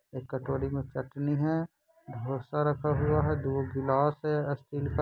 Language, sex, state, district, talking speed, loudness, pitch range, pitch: Hindi, male, Bihar, Gaya, 165 wpm, -31 LUFS, 135-150 Hz, 145 Hz